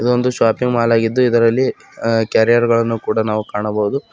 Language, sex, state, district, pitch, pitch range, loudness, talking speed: Kannada, male, Karnataka, Bidar, 115 Hz, 110-125 Hz, -16 LUFS, 145 wpm